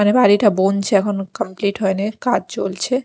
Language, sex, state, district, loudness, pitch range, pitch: Bengali, female, Chhattisgarh, Raipur, -18 LUFS, 195-210 Hz, 200 Hz